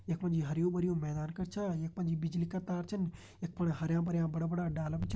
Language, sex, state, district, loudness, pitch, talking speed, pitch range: Hindi, male, Uttarakhand, Tehri Garhwal, -36 LUFS, 170 Hz, 220 wpm, 160-175 Hz